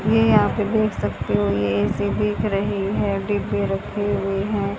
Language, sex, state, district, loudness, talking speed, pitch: Hindi, female, Haryana, Charkhi Dadri, -21 LUFS, 190 wpm, 110 Hz